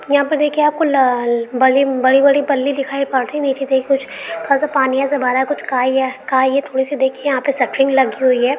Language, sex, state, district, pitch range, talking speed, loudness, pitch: Maithili, female, Bihar, Supaul, 260-280 Hz, 260 wpm, -16 LUFS, 270 Hz